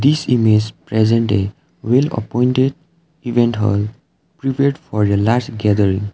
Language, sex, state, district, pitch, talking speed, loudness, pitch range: English, male, Sikkim, Gangtok, 120 Hz, 125 wpm, -17 LUFS, 105-135 Hz